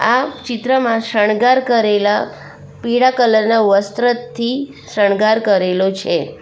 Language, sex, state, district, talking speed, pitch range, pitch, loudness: Gujarati, female, Gujarat, Valsad, 105 wpm, 210-245 Hz, 230 Hz, -15 LUFS